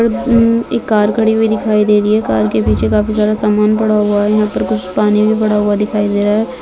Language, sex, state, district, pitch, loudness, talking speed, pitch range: Hindi, female, Bihar, Begusarai, 210 Hz, -13 LUFS, 255 wpm, 205-220 Hz